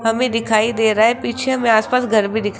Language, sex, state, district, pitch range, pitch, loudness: Hindi, female, Rajasthan, Jaipur, 220-240 Hz, 225 Hz, -16 LUFS